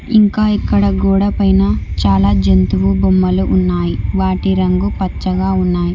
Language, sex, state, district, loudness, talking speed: Telugu, female, Telangana, Hyderabad, -14 LUFS, 120 wpm